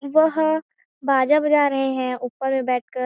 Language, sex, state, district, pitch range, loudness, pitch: Hindi, female, Chhattisgarh, Raigarh, 260-300 Hz, -21 LUFS, 270 Hz